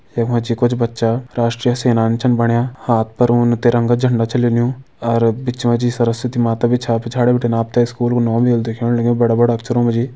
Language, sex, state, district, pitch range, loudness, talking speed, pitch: Hindi, male, Uttarakhand, Uttarkashi, 115-120 Hz, -16 LUFS, 235 wpm, 120 Hz